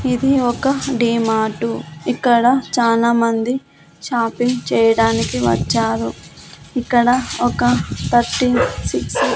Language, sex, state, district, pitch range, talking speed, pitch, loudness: Telugu, female, Andhra Pradesh, Annamaya, 225-250 Hz, 90 wpm, 235 Hz, -17 LUFS